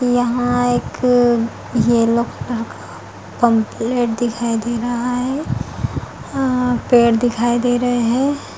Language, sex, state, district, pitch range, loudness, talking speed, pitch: Hindi, female, Bihar, Saharsa, 235-245 Hz, -17 LUFS, 110 wpm, 240 Hz